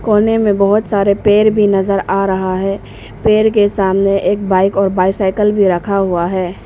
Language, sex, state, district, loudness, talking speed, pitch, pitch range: Hindi, female, Arunachal Pradesh, Papum Pare, -13 LUFS, 190 wpm, 195 Hz, 190-210 Hz